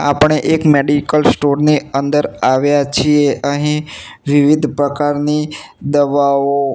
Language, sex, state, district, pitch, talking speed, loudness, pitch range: Gujarati, male, Gujarat, Gandhinagar, 145 Hz, 105 wpm, -14 LUFS, 140-150 Hz